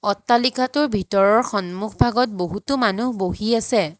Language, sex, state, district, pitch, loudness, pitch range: Assamese, female, Assam, Hailakandi, 215 Hz, -20 LUFS, 200-245 Hz